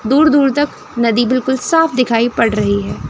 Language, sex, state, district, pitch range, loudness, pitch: Hindi, female, Chandigarh, Chandigarh, 230-285 Hz, -14 LUFS, 255 Hz